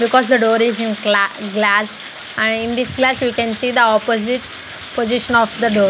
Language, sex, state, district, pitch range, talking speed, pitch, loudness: English, female, Punjab, Fazilka, 215-245 Hz, 205 wpm, 230 Hz, -16 LUFS